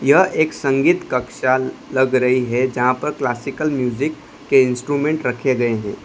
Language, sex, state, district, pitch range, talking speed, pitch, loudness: Hindi, male, Gujarat, Valsad, 125-145 Hz, 160 wpm, 130 Hz, -18 LUFS